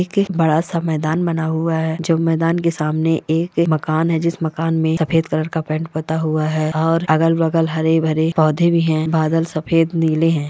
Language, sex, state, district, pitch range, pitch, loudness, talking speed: Hindi, female, Chhattisgarh, Raigarh, 155-165 Hz, 160 Hz, -18 LUFS, 205 wpm